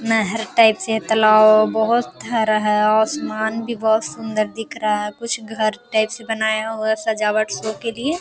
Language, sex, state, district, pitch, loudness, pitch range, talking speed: Hindi, female, Bihar, Araria, 220 Hz, -19 LUFS, 215-225 Hz, 190 wpm